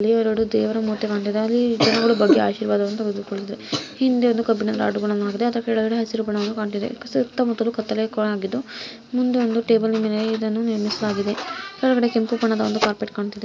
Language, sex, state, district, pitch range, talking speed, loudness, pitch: Kannada, female, Karnataka, Mysore, 215-230 Hz, 145 wpm, -21 LUFS, 220 Hz